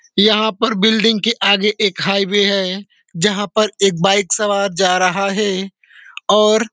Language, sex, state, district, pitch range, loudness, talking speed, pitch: Hindi, male, Uttar Pradesh, Deoria, 195-215 Hz, -15 LUFS, 160 wpm, 205 Hz